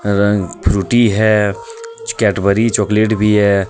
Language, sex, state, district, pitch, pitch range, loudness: Hindi, male, Jharkhand, Deoghar, 105 Hz, 100-115 Hz, -14 LUFS